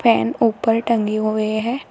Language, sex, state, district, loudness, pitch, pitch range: Hindi, female, Uttar Pradesh, Shamli, -19 LUFS, 225 Hz, 215-230 Hz